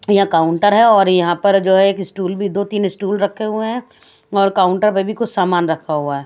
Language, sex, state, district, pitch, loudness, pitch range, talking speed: Hindi, female, Odisha, Khordha, 195 Hz, -15 LUFS, 175-205 Hz, 250 wpm